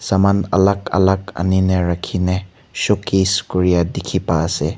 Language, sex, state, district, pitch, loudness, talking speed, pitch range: Nagamese, male, Nagaland, Kohima, 95 Hz, -17 LUFS, 150 wpm, 90-100 Hz